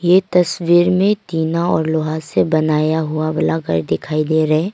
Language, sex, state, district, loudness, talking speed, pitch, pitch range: Hindi, female, Arunachal Pradesh, Longding, -17 LUFS, 190 wpm, 160 Hz, 155-175 Hz